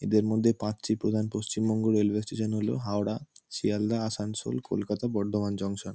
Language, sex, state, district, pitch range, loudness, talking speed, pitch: Bengali, male, West Bengal, Kolkata, 105-110 Hz, -29 LUFS, 140 wpm, 105 Hz